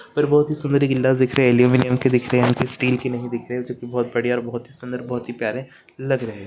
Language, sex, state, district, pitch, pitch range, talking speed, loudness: Hindi, male, Karnataka, Raichur, 125 Hz, 120-130 Hz, 285 wpm, -20 LUFS